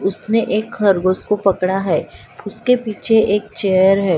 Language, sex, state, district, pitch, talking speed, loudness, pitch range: Hindi, female, Maharashtra, Gondia, 200 Hz, 185 wpm, -17 LUFS, 190-215 Hz